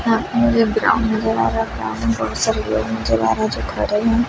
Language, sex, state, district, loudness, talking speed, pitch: Hindi, female, Bihar, Kaimur, -19 LUFS, 250 wpm, 115 Hz